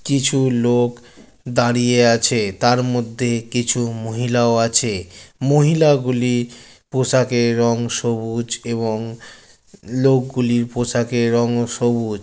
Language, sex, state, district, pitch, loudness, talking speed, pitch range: Bengali, male, West Bengal, Jalpaiguri, 120 Hz, -18 LUFS, 90 wpm, 115-125 Hz